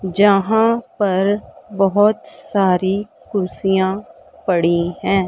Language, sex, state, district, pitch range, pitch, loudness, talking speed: Hindi, female, Punjab, Pathankot, 190-205 Hz, 195 Hz, -18 LUFS, 80 wpm